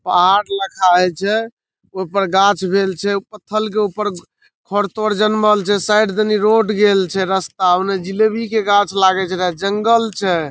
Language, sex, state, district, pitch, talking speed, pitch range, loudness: Maithili, male, Bihar, Saharsa, 200 Hz, 160 wpm, 190-215 Hz, -16 LUFS